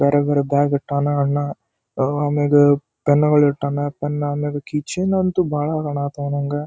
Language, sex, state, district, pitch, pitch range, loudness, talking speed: Kannada, male, Karnataka, Dharwad, 145 Hz, 140-145 Hz, -19 LUFS, 145 wpm